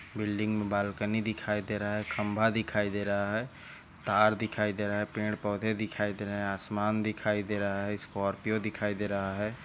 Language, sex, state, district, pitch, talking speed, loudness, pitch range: Hindi, male, Maharashtra, Chandrapur, 105 Hz, 200 wpm, -31 LUFS, 100-110 Hz